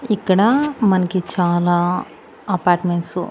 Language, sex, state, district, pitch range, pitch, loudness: Telugu, female, Andhra Pradesh, Annamaya, 175-205 Hz, 180 Hz, -18 LUFS